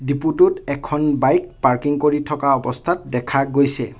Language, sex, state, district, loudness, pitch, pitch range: Assamese, male, Assam, Kamrup Metropolitan, -18 LUFS, 140 Hz, 130-150 Hz